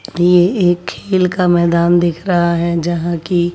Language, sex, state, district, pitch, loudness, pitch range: Hindi, female, Bihar, West Champaran, 175 Hz, -14 LUFS, 170-180 Hz